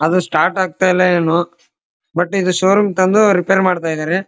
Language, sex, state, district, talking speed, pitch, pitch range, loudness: Kannada, male, Karnataka, Dharwad, 170 wpm, 185 Hz, 170-190 Hz, -15 LUFS